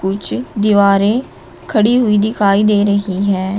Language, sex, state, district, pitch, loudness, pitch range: Hindi, female, Uttar Pradesh, Shamli, 205 Hz, -14 LUFS, 200-215 Hz